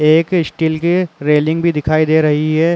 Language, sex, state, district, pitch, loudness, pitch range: Hindi, male, Uttar Pradesh, Jalaun, 155 Hz, -14 LUFS, 155-170 Hz